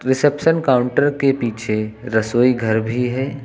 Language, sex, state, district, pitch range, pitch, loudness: Hindi, male, Uttar Pradesh, Lucknow, 115-135 Hz, 125 Hz, -18 LUFS